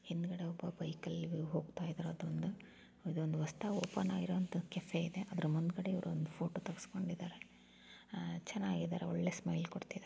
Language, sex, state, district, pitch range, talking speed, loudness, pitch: Kannada, female, Karnataka, Raichur, 165-185 Hz, 145 wpm, -41 LUFS, 175 Hz